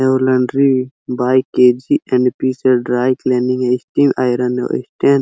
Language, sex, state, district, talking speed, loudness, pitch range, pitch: Hindi, male, Bihar, Araria, 140 wpm, -15 LUFS, 125-130 Hz, 130 Hz